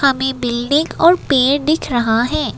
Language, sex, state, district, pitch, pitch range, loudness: Hindi, female, Assam, Kamrup Metropolitan, 270 Hz, 240-295 Hz, -15 LUFS